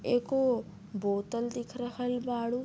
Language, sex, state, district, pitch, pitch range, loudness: Bhojpuri, female, Uttar Pradesh, Deoria, 245 Hz, 235-245 Hz, -32 LUFS